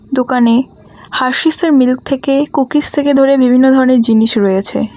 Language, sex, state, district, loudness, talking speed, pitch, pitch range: Bengali, female, West Bengal, Alipurduar, -11 LUFS, 135 wpm, 265 Hz, 250-275 Hz